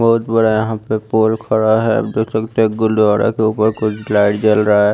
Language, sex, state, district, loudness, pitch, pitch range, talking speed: Hindi, male, Chandigarh, Chandigarh, -15 LUFS, 110 Hz, 105-110 Hz, 180 wpm